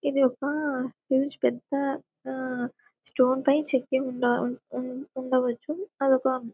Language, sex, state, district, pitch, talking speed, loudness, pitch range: Telugu, female, Telangana, Karimnagar, 265 Hz, 100 wpm, -27 LUFS, 255-280 Hz